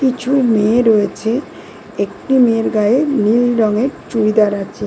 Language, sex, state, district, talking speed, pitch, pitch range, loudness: Bengali, female, West Bengal, Dakshin Dinajpur, 125 wpm, 230 Hz, 215-260 Hz, -15 LUFS